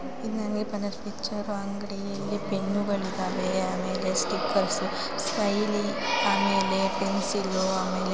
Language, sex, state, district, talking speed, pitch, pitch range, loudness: Kannada, female, Karnataka, Gulbarga, 95 wpm, 200 Hz, 195-210 Hz, -28 LUFS